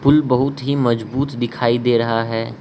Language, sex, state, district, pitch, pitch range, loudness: Hindi, male, Arunachal Pradesh, Lower Dibang Valley, 120 Hz, 115-135 Hz, -18 LUFS